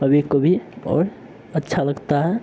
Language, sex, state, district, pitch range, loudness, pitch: Hindi, male, Bihar, Araria, 140-175 Hz, -21 LUFS, 145 Hz